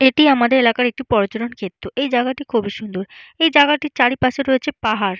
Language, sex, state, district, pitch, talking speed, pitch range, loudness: Bengali, female, West Bengal, Jalpaiguri, 250 Hz, 175 wpm, 220-275 Hz, -17 LUFS